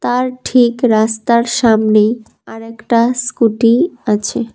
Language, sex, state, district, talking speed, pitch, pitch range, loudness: Bengali, female, Tripura, West Tripura, 105 wpm, 235 Hz, 220-245 Hz, -13 LUFS